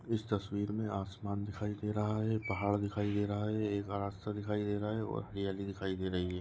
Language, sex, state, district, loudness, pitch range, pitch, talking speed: Hindi, male, Maharashtra, Nagpur, -37 LUFS, 100-105 Hz, 105 Hz, 235 wpm